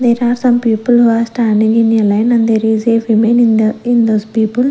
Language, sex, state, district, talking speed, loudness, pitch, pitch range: English, female, Punjab, Fazilka, 255 wpm, -12 LUFS, 230 Hz, 220-240 Hz